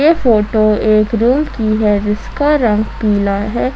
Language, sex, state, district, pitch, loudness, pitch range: Hindi, female, Jharkhand, Ranchi, 215 Hz, -14 LUFS, 210-235 Hz